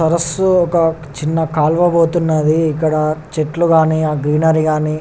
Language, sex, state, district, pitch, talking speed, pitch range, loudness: Telugu, male, Telangana, Nalgonda, 160 Hz, 155 wpm, 155-165 Hz, -15 LUFS